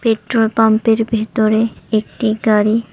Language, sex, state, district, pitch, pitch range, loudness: Bengali, female, West Bengal, Cooch Behar, 220 Hz, 215-225 Hz, -15 LUFS